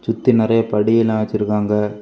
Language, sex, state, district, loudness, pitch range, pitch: Tamil, male, Tamil Nadu, Kanyakumari, -17 LUFS, 105-115 Hz, 110 Hz